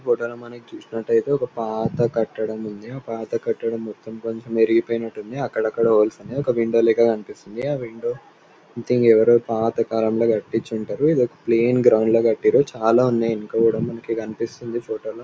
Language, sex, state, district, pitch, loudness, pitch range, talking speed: Telugu, male, Andhra Pradesh, Anantapur, 115 Hz, -21 LUFS, 110-120 Hz, 170 wpm